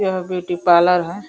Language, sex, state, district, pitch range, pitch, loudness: Hindi, female, Uttar Pradesh, Deoria, 175-185 Hz, 180 Hz, -17 LUFS